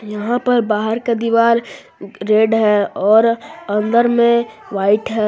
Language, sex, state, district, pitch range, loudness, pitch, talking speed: Hindi, female, Jharkhand, Garhwa, 210-235 Hz, -15 LUFS, 220 Hz, 135 wpm